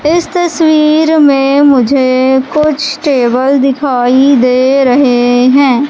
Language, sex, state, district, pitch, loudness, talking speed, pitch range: Hindi, female, Madhya Pradesh, Katni, 275 Hz, -9 LUFS, 100 wpm, 255-300 Hz